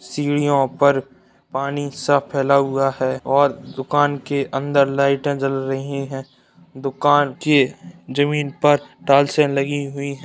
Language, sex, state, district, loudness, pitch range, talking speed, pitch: Hindi, male, Bihar, Darbhanga, -19 LUFS, 135-145 Hz, 135 wpm, 140 Hz